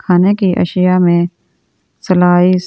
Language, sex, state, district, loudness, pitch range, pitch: Hindi, female, Delhi, New Delhi, -12 LUFS, 175-185 Hz, 180 Hz